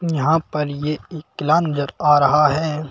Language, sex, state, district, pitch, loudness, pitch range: Hindi, male, Madhya Pradesh, Bhopal, 150 Hz, -18 LUFS, 145-160 Hz